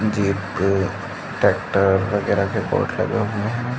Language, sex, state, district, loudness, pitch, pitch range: Hindi, male, Uttar Pradesh, Jalaun, -21 LUFS, 100 Hz, 95-105 Hz